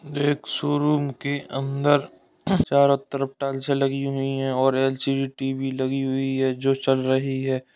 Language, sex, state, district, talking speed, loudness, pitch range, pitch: Hindi, male, Uttar Pradesh, Ghazipur, 155 wpm, -23 LUFS, 135-140 Hz, 135 Hz